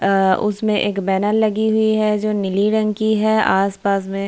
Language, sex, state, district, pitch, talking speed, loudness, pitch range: Hindi, female, Bihar, Kishanganj, 210 Hz, 210 wpm, -18 LUFS, 195-215 Hz